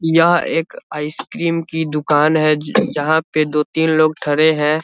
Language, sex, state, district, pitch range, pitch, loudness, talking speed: Hindi, male, Bihar, Vaishali, 150-160 Hz, 155 Hz, -16 LUFS, 185 wpm